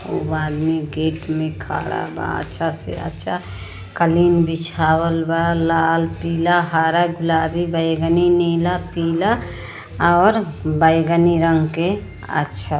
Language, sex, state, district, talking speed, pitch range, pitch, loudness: Bhojpuri, female, Uttar Pradesh, Ghazipur, 115 wpm, 160-170 Hz, 165 Hz, -18 LUFS